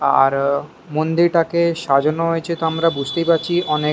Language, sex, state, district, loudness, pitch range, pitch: Bengali, male, West Bengal, Kolkata, -18 LUFS, 150-170 Hz, 165 Hz